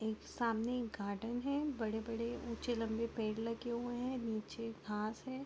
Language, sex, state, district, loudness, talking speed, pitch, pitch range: Hindi, female, Chhattisgarh, Korba, -40 LUFS, 165 wpm, 230 Hz, 220-240 Hz